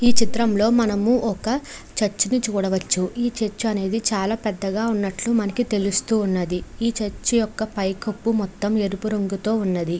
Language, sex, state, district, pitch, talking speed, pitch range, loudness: Telugu, female, Andhra Pradesh, Chittoor, 215 Hz, 150 wpm, 195-230 Hz, -22 LUFS